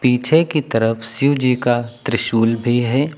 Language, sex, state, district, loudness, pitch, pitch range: Hindi, male, Uttar Pradesh, Lucknow, -17 LUFS, 120 Hz, 115-140 Hz